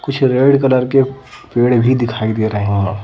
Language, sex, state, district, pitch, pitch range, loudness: Hindi, female, Madhya Pradesh, Bhopal, 125 Hz, 110-135 Hz, -14 LUFS